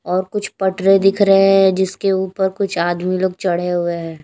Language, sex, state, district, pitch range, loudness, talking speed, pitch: Hindi, female, Maharashtra, Gondia, 180-195 Hz, -16 LUFS, 200 wpm, 190 Hz